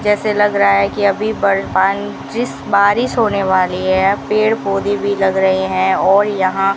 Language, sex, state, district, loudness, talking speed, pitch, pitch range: Hindi, female, Rajasthan, Bikaner, -15 LUFS, 185 wpm, 200 Hz, 190-210 Hz